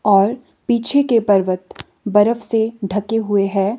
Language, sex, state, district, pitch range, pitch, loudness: Hindi, female, Himachal Pradesh, Shimla, 200-230 Hz, 210 Hz, -17 LUFS